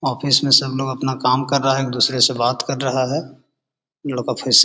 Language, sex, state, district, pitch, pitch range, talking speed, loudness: Hindi, male, Bihar, Gaya, 130 Hz, 130-135 Hz, 235 wpm, -18 LUFS